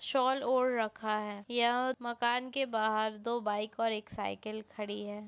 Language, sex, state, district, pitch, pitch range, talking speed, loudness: Hindi, female, Jharkhand, Jamtara, 220 Hz, 210-245 Hz, 170 wpm, -33 LUFS